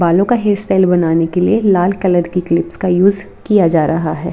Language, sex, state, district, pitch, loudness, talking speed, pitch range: Hindi, female, Bihar, Darbhanga, 180 Hz, -14 LUFS, 235 wpm, 170-195 Hz